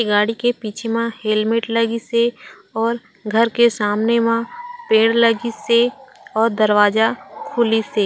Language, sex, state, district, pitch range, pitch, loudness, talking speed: Chhattisgarhi, female, Chhattisgarh, Raigarh, 220-235 Hz, 230 Hz, -18 LUFS, 150 wpm